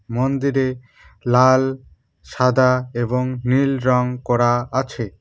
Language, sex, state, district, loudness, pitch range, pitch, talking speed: Bengali, male, West Bengal, Cooch Behar, -19 LUFS, 120-130 Hz, 125 Hz, 90 wpm